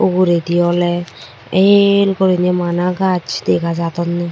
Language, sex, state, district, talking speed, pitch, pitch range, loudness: Chakma, male, Tripura, Dhalai, 110 wpm, 175 Hz, 170-185 Hz, -15 LUFS